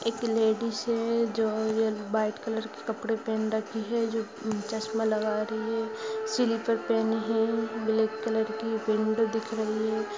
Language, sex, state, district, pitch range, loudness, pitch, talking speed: Hindi, female, Uttar Pradesh, Deoria, 220-225 Hz, -29 LUFS, 220 Hz, 165 wpm